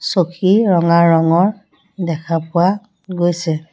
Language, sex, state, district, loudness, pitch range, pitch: Assamese, female, Assam, Sonitpur, -15 LUFS, 165-190 Hz, 175 Hz